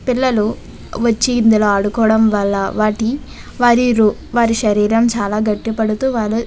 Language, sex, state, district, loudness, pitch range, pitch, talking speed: Telugu, female, Andhra Pradesh, Visakhapatnam, -15 LUFS, 210-240 Hz, 220 Hz, 100 wpm